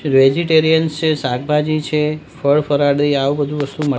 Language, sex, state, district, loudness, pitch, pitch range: Gujarati, male, Gujarat, Gandhinagar, -16 LUFS, 150 Hz, 140-155 Hz